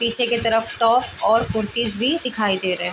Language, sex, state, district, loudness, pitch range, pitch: Hindi, female, Chhattisgarh, Raigarh, -19 LUFS, 210-235 Hz, 230 Hz